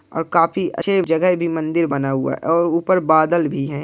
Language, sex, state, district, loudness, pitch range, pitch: Hindi, male, Bihar, Purnia, -18 LUFS, 155-175 Hz, 165 Hz